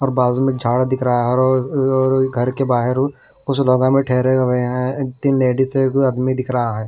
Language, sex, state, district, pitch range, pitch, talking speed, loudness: Hindi, male, Delhi, New Delhi, 125-135 Hz, 130 Hz, 210 wpm, -17 LUFS